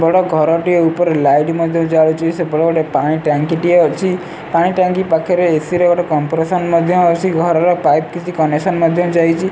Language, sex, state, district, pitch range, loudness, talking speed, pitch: Odia, male, Odisha, Sambalpur, 160-175 Hz, -14 LUFS, 185 wpm, 165 Hz